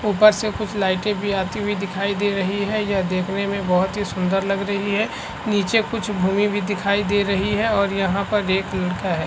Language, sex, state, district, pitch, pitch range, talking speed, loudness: Hindi, female, Chhattisgarh, Korba, 200 Hz, 195-205 Hz, 220 wpm, -21 LUFS